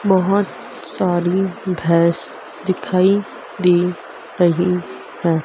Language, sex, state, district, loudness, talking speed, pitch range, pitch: Hindi, female, Madhya Pradesh, Dhar, -18 LUFS, 75 wpm, 175-190 Hz, 180 Hz